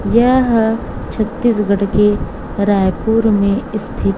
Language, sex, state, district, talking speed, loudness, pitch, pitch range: Hindi, female, Chhattisgarh, Raipur, 85 wpm, -15 LUFS, 215 Hz, 200-225 Hz